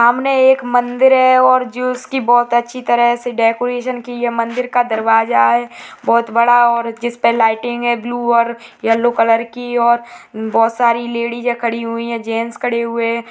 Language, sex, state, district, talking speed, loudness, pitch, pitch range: Hindi, female, Uttarakhand, Tehri Garhwal, 180 wpm, -15 LUFS, 235 Hz, 230-245 Hz